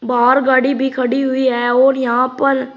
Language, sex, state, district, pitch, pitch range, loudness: Hindi, male, Uttar Pradesh, Shamli, 260 Hz, 250-265 Hz, -14 LUFS